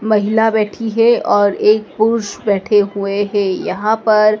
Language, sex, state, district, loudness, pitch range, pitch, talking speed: Hindi, female, Madhya Pradesh, Dhar, -15 LUFS, 205-220 Hz, 215 Hz, 150 wpm